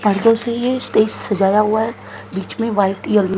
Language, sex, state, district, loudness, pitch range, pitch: Hindi, female, Maharashtra, Mumbai Suburban, -17 LUFS, 200-230 Hz, 215 Hz